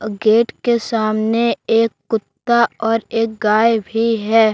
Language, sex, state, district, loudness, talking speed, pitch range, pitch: Hindi, male, Jharkhand, Deoghar, -17 LUFS, 145 wpm, 220-230 Hz, 225 Hz